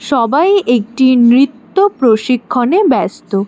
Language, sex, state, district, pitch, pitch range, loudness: Bengali, female, West Bengal, Alipurduar, 250 Hz, 235-295 Hz, -12 LUFS